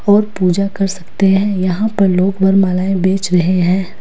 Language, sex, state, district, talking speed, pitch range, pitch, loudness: Hindi, female, Himachal Pradesh, Shimla, 180 wpm, 185-195 Hz, 190 Hz, -14 LUFS